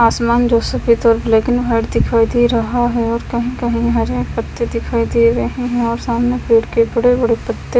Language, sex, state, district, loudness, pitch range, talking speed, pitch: Hindi, female, Himachal Pradesh, Shimla, -15 LUFS, 230-240 Hz, 200 wpm, 235 Hz